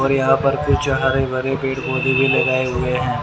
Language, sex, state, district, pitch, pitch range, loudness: Hindi, male, Haryana, Rohtak, 135 Hz, 130-135 Hz, -18 LUFS